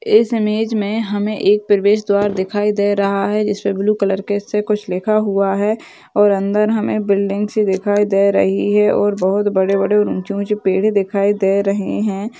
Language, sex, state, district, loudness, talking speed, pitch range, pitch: Hindi, female, Maharashtra, Sindhudurg, -16 LUFS, 195 wpm, 200-210 Hz, 205 Hz